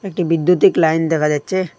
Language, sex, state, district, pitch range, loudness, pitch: Bengali, male, Assam, Hailakandi, 160-185 Hz, -15 LUFS, 170 Hz